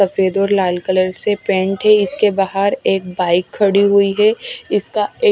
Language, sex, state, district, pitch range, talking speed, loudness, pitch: Hindi, female, Odisha, Malkangiri, 190-210 Hz, 170 wpm, -15 LUFS, 200 Hz